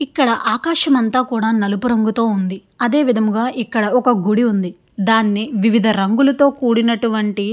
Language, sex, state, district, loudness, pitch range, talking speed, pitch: Telugu, female, Andhra Pradesh, Srikakulam, -16 LUFS, 215-250 Hz, 145 wpm, 230 Hz